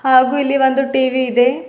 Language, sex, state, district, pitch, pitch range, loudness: Kannada, female, Karnataka, Bidar, 260 Hz, 255-270 Hz, -15 LUFS